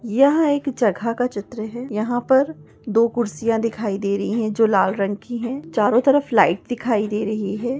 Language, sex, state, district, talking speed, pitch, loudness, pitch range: Hindi, female, Maharashtra, Chandrapur, 200 wpm, 230 Hz, -20 LUFS, 210-245 Hz